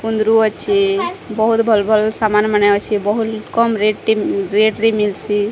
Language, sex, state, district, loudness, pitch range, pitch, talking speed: Odia, female, Odisha, Sambalpur, -16 LUFS, 210-225 Hz, 215 Hz, 150 wpm